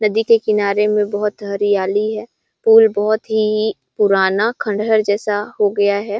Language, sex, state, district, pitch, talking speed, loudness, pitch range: Hindi, female, Chhattisgarh, Sarguja, 210 Hz, 155 wpm, -16 LUFS, 205-220 Hz